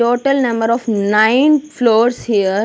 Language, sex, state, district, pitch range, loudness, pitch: English, female, Punjab, Kapurthala, 220-255 Hz, -14 LUFS, 235 Hz